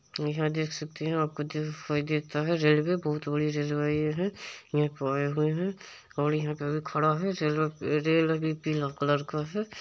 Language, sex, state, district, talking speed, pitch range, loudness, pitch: Maithili, male, Bihar, Supaul, 195 wpm, 150-155 Hz, -29 LUFS, 150 Hz